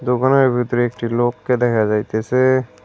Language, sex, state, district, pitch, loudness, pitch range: Bengali, male, West Bengal, Cooch Behar, 120 Hz, -17 LUFS, 115-125 Hz